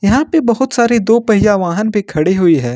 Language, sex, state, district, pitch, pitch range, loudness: Hindi, male, Jharkhand, Ranchi, 215 Hz, 185-235 Hz, -13 LUFS